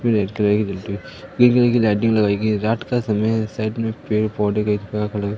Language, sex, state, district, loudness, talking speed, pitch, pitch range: Hindi, male, Madhya Pradesh, Katni, -19 LUFS, 210 wpm, 105 Hz, 105-110 Hz